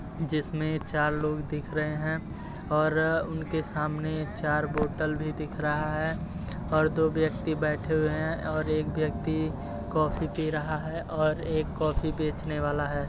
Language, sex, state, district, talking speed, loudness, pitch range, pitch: Hindi, male, Uttar Pradesh, Jyotiba Phule Nagar, 155 wpm, -29 LUFS, 150-160 Hz, 155 Hz